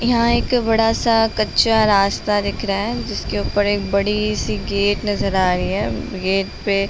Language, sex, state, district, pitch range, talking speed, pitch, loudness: Hindi, female, Uttar Pradesh, Deoria, 200-225 Hz, 190 wpm, 205 Hz, -18 LUFS